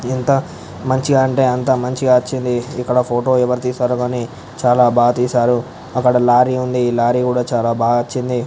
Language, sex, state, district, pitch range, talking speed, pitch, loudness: Telugu, male, Andhra Pradesh, Visakhapatnam, 120-130 Hz, 170 wpm, 125 Hz, -16 LUFS